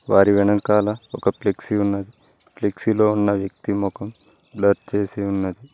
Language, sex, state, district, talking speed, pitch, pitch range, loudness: Telugu, male, Telangana, Mahabubabad, 135 wpm, 100 Hz, 100-105 Hz, -21 LUFS